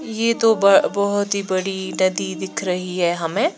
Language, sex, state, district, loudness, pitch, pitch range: Hindi, female, Chandigarh, Chandigarh, -19 LUFS, 190 Hz, 180-205 Hz